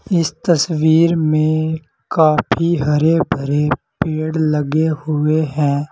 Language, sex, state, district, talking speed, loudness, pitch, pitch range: Hindi, male, Uttar Pradesh, Saharanpur, 90 wpm, -16 LUFS, 155 Hz, 150-160 Hz